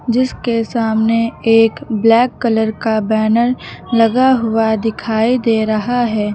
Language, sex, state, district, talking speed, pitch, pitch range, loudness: Hindi, female, Uttar Pradesh, Lucknow, 125 wpm, 225 Hz, 220-240 Hz, -15 LUFS